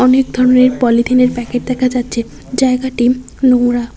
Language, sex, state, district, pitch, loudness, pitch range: Bengali, female, West Bengal, Cooch Behar, 250 Hz, -13 LUFS, 245-255 Hz